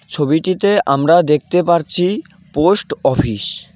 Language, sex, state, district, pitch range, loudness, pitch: Bengali, male, West Bengal, Cooch Behar, 155-185 Hz, -14 LUFS, 175 Hz